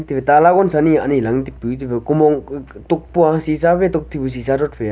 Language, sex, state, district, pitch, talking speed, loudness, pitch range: Wancho, male, Arunachal Pradesh, Longding, 150 Hz, 195 wpm, -16 LUFS, 135-160 Hz